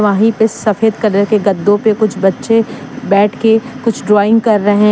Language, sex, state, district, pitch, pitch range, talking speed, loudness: Hindi, female, Jharkhand, Deoghar, 215 Hz, 205-225 Hz, 195 wpm, -12 LUFS